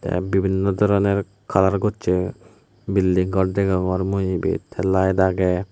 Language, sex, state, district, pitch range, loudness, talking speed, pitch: Chakma, male, Tripura, West Tripura, 95-100 Hz, -21 LUFS, 135 wpm, 95 Hz